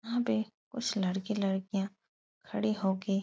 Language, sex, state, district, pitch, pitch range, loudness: Hindi, female, Uttar Pradesh, Etah, 210 Hz, 195-225 Hz, -33 LUFS